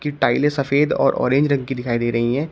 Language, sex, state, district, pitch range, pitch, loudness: Hindi, male, Uttar Pradesh, Shamli, 120-145 Hz, 140 Hz, -19 LUFS